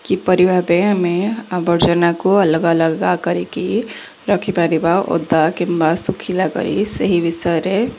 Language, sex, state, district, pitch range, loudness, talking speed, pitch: Odia, female, Odisha, Khordha, 170-190 Hz, -16 LUFS, 105 wpm, 180 Hz